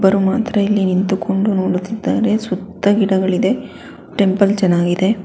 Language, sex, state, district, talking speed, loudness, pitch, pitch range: Kannada, female, Karnataka, Bangalore, 105 wpm, -16 LUFS, 195 Hz, 185-205 Hz